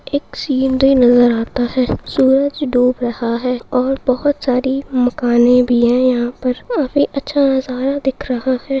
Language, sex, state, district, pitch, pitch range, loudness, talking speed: Hindi, female, Bihar, Saharsa, 255 Hz, 245-270 Hz, -15 LUFS, 155 wpm